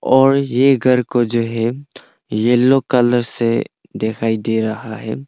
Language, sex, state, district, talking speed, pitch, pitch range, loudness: Hindi, male, Arunachal Pradesh, Longding, 150 wpm, 120 Hz, 115-135 Hz, -16 LUFS